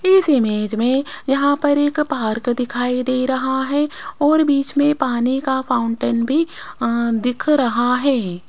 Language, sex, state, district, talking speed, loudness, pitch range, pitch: Hindi, female, Rajasthan, Jaipur, 155 wpm, -18 LUFS, 240-290 Hz, 260 Hz